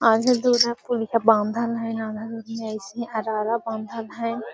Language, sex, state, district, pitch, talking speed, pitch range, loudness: Magahi, female, Bihar, Gaya, 225 Hz, 160 wpm, 220-235 Hz, -24 LUFS